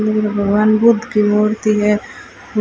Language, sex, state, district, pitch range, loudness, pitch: Hindi, female, Rajasthan, Bikaner, 210-215 Hz, -15 LUFS, 215 Hz